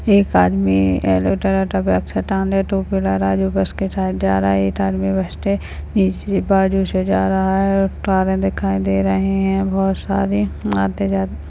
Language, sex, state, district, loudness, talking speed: Hindi, female, Uttarakhand, Tehri Garhwal, -18 LUFS, 140 wpm